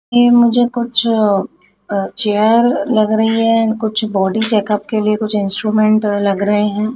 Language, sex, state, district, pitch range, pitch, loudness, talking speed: Hindi, female, Madhya Pradesh, Dhar, 210-225 Hz, 215 Hz, -14 LUFS, 155 wpm